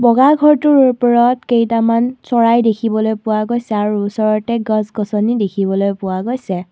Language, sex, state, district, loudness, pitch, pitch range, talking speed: Assamese, female, Assam, Kamrup Metropolitan, -15 LUFS, 225 Hz, 210-240 Hz, 125 wpm